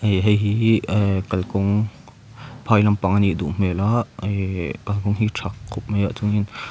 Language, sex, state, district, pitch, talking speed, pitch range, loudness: Mizo, male, Mizoram, Aizawl, 105 Hz, 190 wpm, 100-110 Hz, -21 LUFS